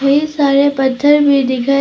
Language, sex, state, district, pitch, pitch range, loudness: Hindi, female, Arunachal Pradesh, Papum Pare, 280 Hz, 275-285 Hz, -12 LUFS